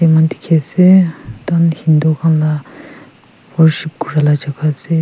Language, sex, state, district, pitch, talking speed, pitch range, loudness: Nagamese, female, Nagaland, Kohima, 160 Hz, 120 wpm, 150-165 Hz, -13 LUFS